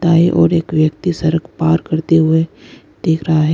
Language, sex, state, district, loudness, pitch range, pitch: Hindi, female, Arunachal Pradesh, Lower Dibang Valley, -15 LUFS, 160-165 Hz, 160 Hz